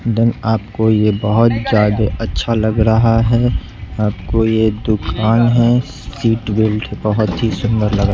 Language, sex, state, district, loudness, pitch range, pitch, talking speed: Hindi, male, Bihar, West Champaran, -15 LUFS, 105-115 Hz, 110 Hz, 135 wpm